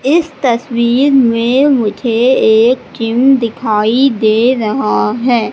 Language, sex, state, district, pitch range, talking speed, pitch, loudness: Hindi, female, Madhya Pradesh, Katni, 225-260 Hz, 110 wpm, 235 Hz, -12 LUFS